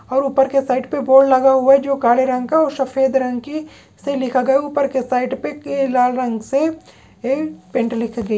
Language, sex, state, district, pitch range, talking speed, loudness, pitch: Hindi, male, Maharashtra, Pune, 250-275 Hz, 245 wpm, -17 LUFS, 265 Hz